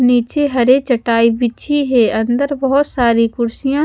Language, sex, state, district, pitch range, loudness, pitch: Hindi, female, Haryana, Charkhi Dadri, 235-280 Hz, -15 LUFS, 250 Hz